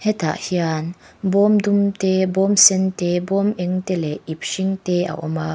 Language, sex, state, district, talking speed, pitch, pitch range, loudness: Mizo, female, Mizoram, Aizawl, 195 wpm, 185 Hz, 165-195 Hz, -19 LUFS